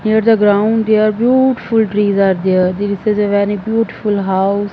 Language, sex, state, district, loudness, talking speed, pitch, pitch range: English, female, Punjab, Fazilka, -14 LUFS, 180 wpm, 210 Hz, 200-220 Hz